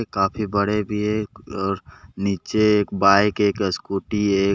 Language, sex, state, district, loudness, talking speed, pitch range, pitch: Hindi, male, Jharkhand, Deoghar, -21 LUFS, 145 wpm, 100-105 Hz, 100 Hz